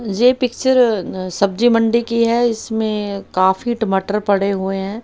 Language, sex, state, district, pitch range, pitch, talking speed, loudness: Hindi, female, Haryana, Rohtak, 195-235 Hz, 220 Hz, 145 wpm, -17 LUFS